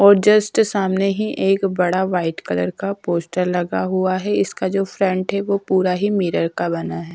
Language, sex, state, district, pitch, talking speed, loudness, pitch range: Hindi, female, Punjab, Kapurthala, 190 Hz, 200 wpm, -19 LUFS, 180-200 Hz